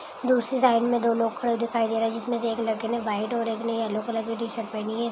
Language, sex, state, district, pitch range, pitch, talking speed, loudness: Hindi, female, Chhattisgarh, Kabirdham, 225-235 Hz, 230 Hz, 245 wpm, -26 LUFS